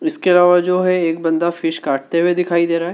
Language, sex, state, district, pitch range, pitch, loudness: Hindi, male, Madhya Pradesh, Dhar, 165-180 Hz, 170 Hz, -16 LUFS